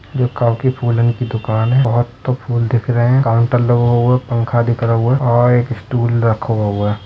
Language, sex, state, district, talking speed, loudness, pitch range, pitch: Hindi, male, Uttar Pradesh, Budaun, 210 wpm, -15 LUFS, 115-125 Hz, 120 Hz